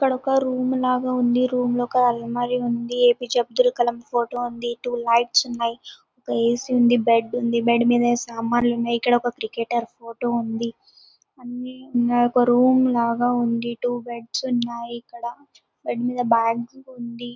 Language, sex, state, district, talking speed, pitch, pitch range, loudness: Telugu, female, Andhra Pradesh, Anantapur, 150 wpm, 240 Hz, 235-245 Hz, -22 LUFS